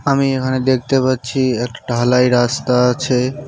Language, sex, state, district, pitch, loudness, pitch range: Bengali, male, West Bengal, Cooch Behar, 125 Hz, -16 LUFS, 125-130 Hz